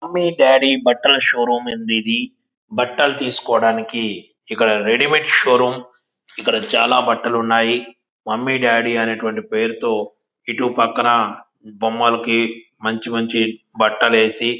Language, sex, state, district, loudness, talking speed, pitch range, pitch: Telugu, male, Andhra Pradesh, Visakhapatnam, -17 LUFS, 125 wpm, 115-125 Hz, 115 Hz